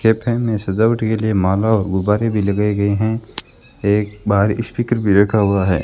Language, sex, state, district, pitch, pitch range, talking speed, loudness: Hindi, male, Rajasthan, Bikaner, 105 Hz, 100-110 Hz, 195 wpm, -17 LUFS